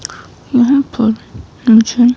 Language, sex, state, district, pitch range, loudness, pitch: Hindi, female, Himachal Pradesh, Shimla, 225-250 Hz, -12 LUFS, 240 Hz